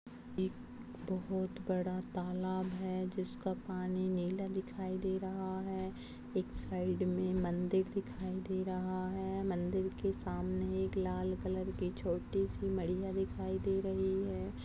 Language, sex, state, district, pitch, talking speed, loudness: Hindi, female, Chhattisgarh, Rajnandgaon, 185 Hz, 140 wpm, -38 LUFS